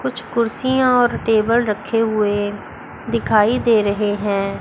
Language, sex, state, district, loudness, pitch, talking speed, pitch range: Hindi, female, Chandigarh, Chandigarh, -18 LUFS, 215 Hz, 130 wpm, 205-235 Hz